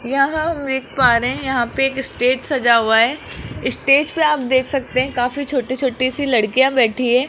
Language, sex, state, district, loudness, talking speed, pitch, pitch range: Hindi, male, Rajasthan, Jaipur, -17 LUFS, 205 wpm, 260 Hz, 245-275 Hz